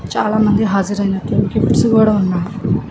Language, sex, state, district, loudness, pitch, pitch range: Telugu, female, Andhra Pradesh, Chittoor, -15 LUFS, 205 Hz, 195-215 Hz